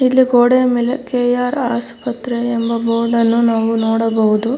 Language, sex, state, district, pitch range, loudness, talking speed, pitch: Kannada, female, Karnataka, Mysore, 230-250 Hz, -15 LUFS, 130 wpm, 235 Hz